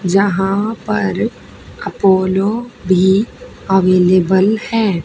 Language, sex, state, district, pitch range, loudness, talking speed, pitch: Hindi, female, Haryana, Charkhi Dadri, 190-215 Hz, -14 LUFS, 70 wpm, 195 Hz